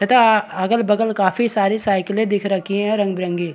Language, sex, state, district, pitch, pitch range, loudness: Hindi, male, Chhattisgarh, Bastar, 205 Hz, 195-220 Hz, -18 LUFS